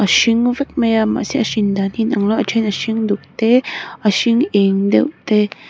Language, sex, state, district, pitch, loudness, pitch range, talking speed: Mizo, female, Mizoram, Aizawl, 220 Hz, -16 LUFS, 205-235 Hz, 265 wpm